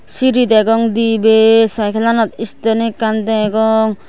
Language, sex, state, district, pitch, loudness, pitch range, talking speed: Chakma, female, Tripura, West Tripura, 225 Hz, -13 LUFS, 220-230 Hz, 115 wpm